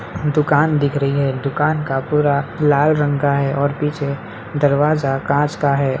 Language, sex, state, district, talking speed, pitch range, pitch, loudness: Hindi, male, Uttar Pradesh, Hamirpur, 170 wpm, 140-150 Hz, 145 Hz, -17 LUFS